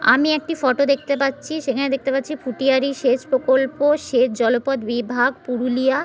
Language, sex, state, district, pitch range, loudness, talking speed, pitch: Bengali, female, West Bengal, Purulia, 255-280 Hz, -20 LUFS, 160 wpm, 270 Hz